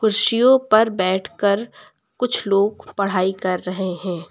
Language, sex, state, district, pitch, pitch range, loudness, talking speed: Hindi, female, Uttar Pradesh, Lucknow, 200 Hz, 185-220 Hz, -19 LUFS, 125 wpm